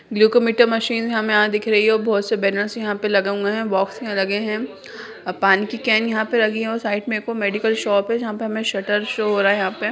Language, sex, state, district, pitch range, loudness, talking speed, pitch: Hindi, female, Bihar, Madhepura, 205-225 Hz, -19 LUFS, 260 wpm, 215 Hz